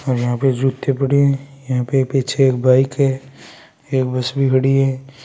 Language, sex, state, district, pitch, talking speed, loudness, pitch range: Marwari, male, Rajasthan, Churu, 135 Hz, 195 wpm, -17 LUFS, 130-135 Hz